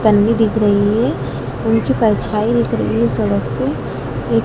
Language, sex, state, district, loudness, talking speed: Hindi, female, Madhya Pradesh, Dhar, -16 LUFS, 160 wpm